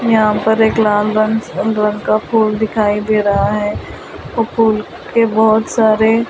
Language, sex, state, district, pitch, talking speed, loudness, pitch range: Hindi, female, Delhi, New Delhi, 220 Hz, 160 wpm, -14 LUFS, 210-220 Hz